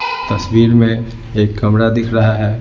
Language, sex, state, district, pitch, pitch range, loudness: Hindi, male, Bihar, Patna, 115 Hz, 110-115 Hz, -14 LUFS